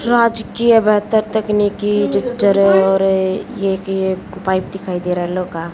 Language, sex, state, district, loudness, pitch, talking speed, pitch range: Hindi, female, Haryana, Jhajjar, -16 LUFS, 195 Hz, 165 wpm, 190-215 Hz